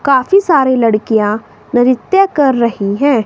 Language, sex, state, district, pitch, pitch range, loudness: Hindi, female, Himachal Pradesh, Shimla, 255 Hz, 225-285 Hz, -12 LUFS